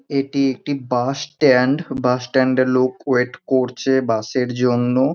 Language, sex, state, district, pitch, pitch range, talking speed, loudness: Bengali, male, West Bengal, North 24 Parganas, 130 Hz, 125-135 Hz, 140 wpm, -19 LUFS